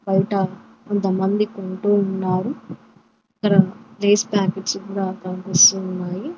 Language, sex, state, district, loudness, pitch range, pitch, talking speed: Telugu, female, Telangana, Mahabubabad, -20 LUFS, 190-205 Hz, 195 Hz, 105 wpm